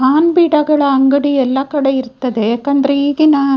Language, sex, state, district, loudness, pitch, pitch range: Kannada, female, Karnataka, Dakshina Kannada, -13 LUFS, 280 Hz, 265-290 Hz